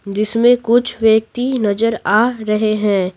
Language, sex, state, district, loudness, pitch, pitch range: Hindi, female, Bihar, Patna, -15 LUFS, 220 Hz, 210-235 Hz